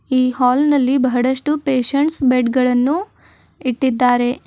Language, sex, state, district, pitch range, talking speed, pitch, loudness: Kannada, female, Karnataka, Bidar, 250-280 Hz, 105 wpm, 255 Hz, -16 LUFS